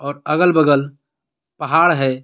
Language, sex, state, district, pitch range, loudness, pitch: Hindi, male, Jharkhand, Garhwa, 140-155 Hz, -15 LUFS, 145 Hz